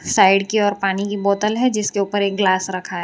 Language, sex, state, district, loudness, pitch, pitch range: Hindi, female, Gujarat, Valsad, -18 LUFS, 200 Hz, 190-205 Hz